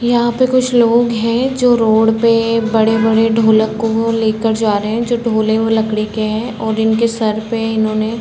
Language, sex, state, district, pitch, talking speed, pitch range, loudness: Hindi, female, Chhattisgarh, Balrampur, 225 Hz, 210 wpm, 220-230 Hz, -14 LUFS